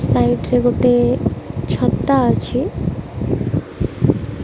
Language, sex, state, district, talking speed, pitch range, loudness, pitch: Odia, female, Odisha, Malkangiri, 65 wpm, 120-125 Hz, -18 LUFS, 120 Hz